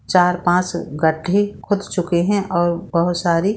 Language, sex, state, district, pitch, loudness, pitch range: Hindi, female, Bihar, Saran, 175 Hz, -19 LUFS, 170-195 Hz